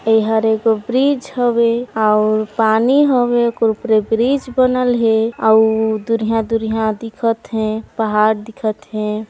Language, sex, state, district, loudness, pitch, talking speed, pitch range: Chhattisgarhi, female, Chhattisgarh, Sarguja, -16 LUFS, 225 Hz, 120 wpm, 220-240 Hz